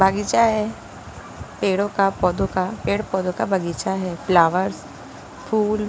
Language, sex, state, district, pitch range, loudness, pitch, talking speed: Hindi, female, Punjab, Pathankot, 185-205 Hz, -21 LUFS, 195 Hz, 130 wpm